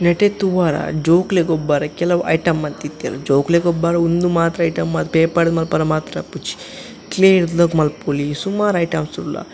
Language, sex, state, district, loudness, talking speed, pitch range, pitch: Tulu, male, Karnataka, Dakshina Kannada, -17 LUFS, 145 wpm, 155-175 Hz, 170 Hz